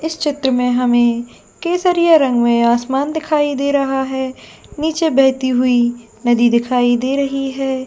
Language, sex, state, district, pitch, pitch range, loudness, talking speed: Hindi, female, Jharkhand, Jamtara, 265 Hz, 245-290 Hz, -16 LUFS, 160 wpm